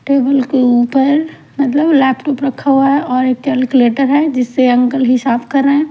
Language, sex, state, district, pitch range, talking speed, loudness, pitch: Hindi, female, Punjab, Pathankot, 255-280 Hz, 170 wpm, -13 LUFS, 270 Hz